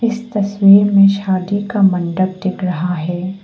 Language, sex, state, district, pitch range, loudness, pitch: Hindi, female, Arunachal Pradesh, Papum Pare, 185-200 Hz, -15 LUFS, 195 Hz